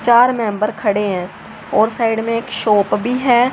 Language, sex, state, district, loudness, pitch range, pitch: Hindi, female, Haryana, Rohtak, -16 LUFS, 210-240 Hz, 225 Hz